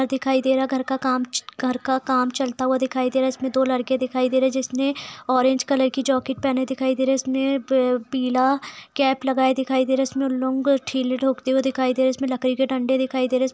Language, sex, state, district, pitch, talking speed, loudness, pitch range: Hindi, female, Bihar, Purnia, 260 Hz, 275 wpm, -22 LUFS, 255-265 Hz